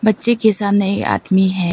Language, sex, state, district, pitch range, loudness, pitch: Hindi, female, Arunachal Pradesh, Papum Pare, 190-220 Hz, -15 LUFS, 200 Hz